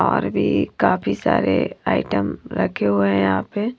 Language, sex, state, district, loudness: Hindi, female, Punjab, Kapurthala, -20 LUFS